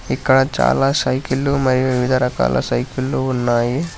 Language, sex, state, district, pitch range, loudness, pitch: Telugu, male, Telangana, Hyderabad, 125-135 Hz, -17 LUFS, 130 Hz